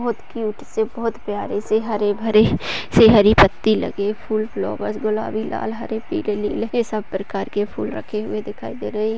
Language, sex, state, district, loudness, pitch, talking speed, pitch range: Hindi, female, Uttar Pradesh, Jalaun, -20 LUFS, 215 Hz, 185 wpm, 210-225 Hz